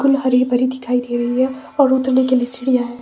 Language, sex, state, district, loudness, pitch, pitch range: Hindi, female, Himachal Pradesh, Shimla, -17 LUFS, 255 Hz, 245-260 Hz